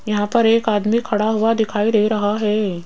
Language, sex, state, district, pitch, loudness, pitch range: Hindi, female, Rajasthan, Jaipur, 215 Hz, -18 LUFS, 210-225 Hz